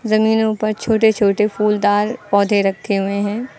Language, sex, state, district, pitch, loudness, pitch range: Hindi, female, Uttar Pradesh, Lucknow, 210 Hz, -17 LUFS, 200-220 Hz